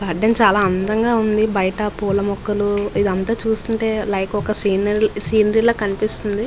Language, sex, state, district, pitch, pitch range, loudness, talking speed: Telugu, female, Andhra Pradesh, Visakhapatnam, 210 Hz, 200-220 Hz, -18 LUFS, 130 wpm